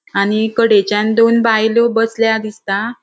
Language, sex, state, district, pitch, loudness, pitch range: Konkani, female, Goa, North and South Goa, 220 Hz, -14 LUFS, 210-230 Hz